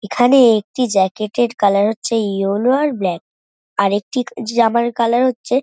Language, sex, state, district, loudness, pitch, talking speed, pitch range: Bengali, female, West Bengal, North 24 Parganas, -16 LUFS, 230 Hz, 160 wpm, 205-245 Hz